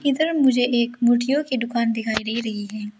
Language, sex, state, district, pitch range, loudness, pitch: Hindi, female, Arunachal Pradesh, Lower Dibang Valley, 220-260 Hz, -21 LUFS, 240 Hz